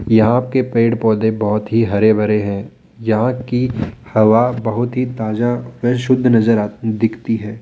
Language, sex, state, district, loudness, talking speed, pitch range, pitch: Hindi, male, Rajasthan, Jaipur, -16 LUFS, 165 wpm, 110-120 Hz, 115 Hz